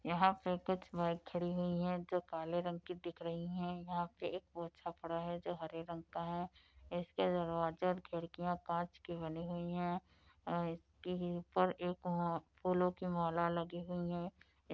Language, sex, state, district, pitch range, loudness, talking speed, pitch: Hindi, female, Uttar Pradesh, Budaun, 170-180 Hz, -40 LUFS, 185 wpm, 175 Hz